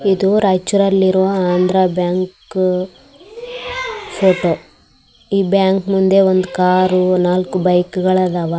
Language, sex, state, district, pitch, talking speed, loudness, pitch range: Kannada, male, Karnataka, Raichur, 185 Hz, 105 wpm, -15 LUFS, 180-195 Hz